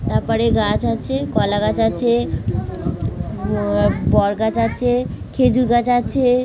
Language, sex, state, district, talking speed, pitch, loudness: Bengali, female, West Bengal, Dakshin Dinajpur, 120 wpm, 225 Hz, -18 LUFS